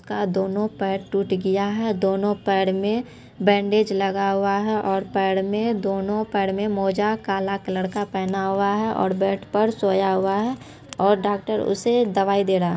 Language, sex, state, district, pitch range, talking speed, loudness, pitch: Maithili, female, Bihar, Supaul, 195-210 Hz, 180 wpm, -22 LUFS, 195 Hz